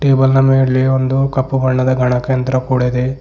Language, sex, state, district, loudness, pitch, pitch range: Kannada, male, Karnataka, Bidar, -14 LUFS, 130 Hz, 130-135 Hz